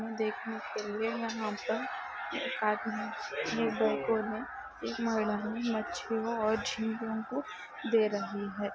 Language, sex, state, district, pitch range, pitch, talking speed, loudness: Hindi, female, Rajasthan, Nagaur, 210-230 Hz, 220 Hz, 115 wpm, -34 LUFS